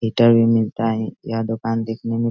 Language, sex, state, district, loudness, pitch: Hindi, male, Bihar, Sitamarhi, -19 LUFS, 115 Hz